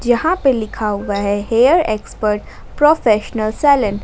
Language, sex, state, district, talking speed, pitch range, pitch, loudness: Hindi, female, Jharkhand, Ranchi, 135 wpm, 210-270 Hz, 220 Hz, -16 LUFS